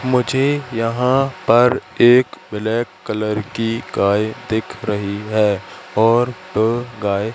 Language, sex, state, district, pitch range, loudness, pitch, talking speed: Hindi, male, Madhya Pradesh, Katni, 105-125 Hz, -18 LUFS, 115 Hz, 115 wpm